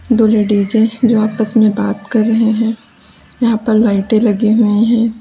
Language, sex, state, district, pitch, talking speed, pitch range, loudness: Hindi, female, Uttar Pradesh, Lalitpur, 220 Hz, 170 wpm, 215-225 Hz, -13 LUFS